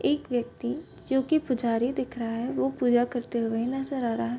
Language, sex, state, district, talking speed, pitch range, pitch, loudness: Hindi, female, Bihar, Bhagalpur, 220 wpm, 235-265 Hz, 245 Hz, -28 LUFS